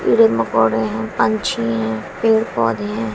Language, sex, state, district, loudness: Hindi, female, Bihar, West Champaran, -18 LUFS